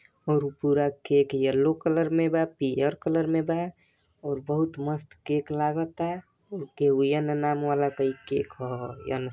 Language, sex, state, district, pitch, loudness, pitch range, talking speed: Bhojpuri, male, Uttar Pradesh, Deoria, 150 Hz, -27 LUFS, 140-160 Hz, 160 wpm